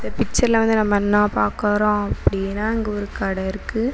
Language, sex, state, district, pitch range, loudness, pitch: Tamil, female, Tamil Nadu, Namakkal, 205-220 Hz, -20 LUFS, 210 Hz